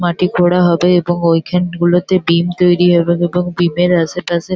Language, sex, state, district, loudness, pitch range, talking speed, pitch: Bengali, female, West Bengal, Kolkata, -13 LUFS, 170-180 Hz, 160 wpm, 175 Hz